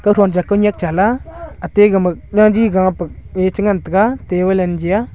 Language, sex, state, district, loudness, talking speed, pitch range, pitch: Wancho, male, Arunachal Pradesh, Longding, -15 LUFS, 130 wpm, 180-210 Hz, 195 Hz